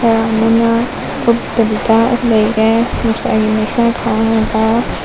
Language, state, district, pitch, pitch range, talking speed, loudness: Manipuri, Manipur, Imphal West, 225 Hz, 220-235 Hz, 85 wpm, -13 LUFS